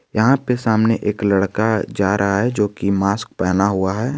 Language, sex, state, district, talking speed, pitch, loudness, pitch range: Hindi, male, Jharkhand, Garhwa, 185 wpm, 105 Hz, -18 LUFS, 100-110 Hz